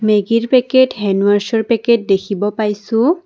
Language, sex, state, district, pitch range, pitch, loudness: Assamese, female, Assam, Kamrup Metropolitan, 205-235 Hz, 220 Hz, -15 LUFS